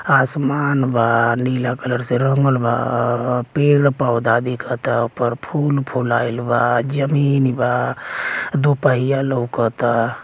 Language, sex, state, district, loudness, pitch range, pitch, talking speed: Bhojpuri, male, Uttar Pradesh, Gorakhpur, -18 LUFS, 120-140 Hz, 125 Hz, 105 wpm